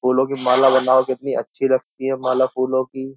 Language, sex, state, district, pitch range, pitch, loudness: Hindi, male, Uttar Pradesh, Jyotiba Phule Nagar, 130-135 Hz, 130 Hz, -19 LUFS